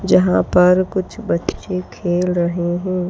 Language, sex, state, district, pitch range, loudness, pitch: Hindi, female, Madhya Pradesh, Bhopal, 150-185 Hz, -18 LUFS, 175 Hz